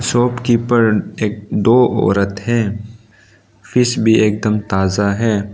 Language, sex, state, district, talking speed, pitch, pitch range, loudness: Hindi, male, Arunachal Pradesh, Lower Dibang Valley, 120 wpm, 110 Hz, 105-120 Hz, -15 LUFS